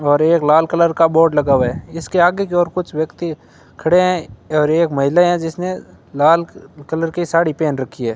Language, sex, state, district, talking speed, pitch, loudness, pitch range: Hindi, male, Rajasthan, Bikaner, 215 wpm, 165 Hz, -16 LUFS, 145-170 Hz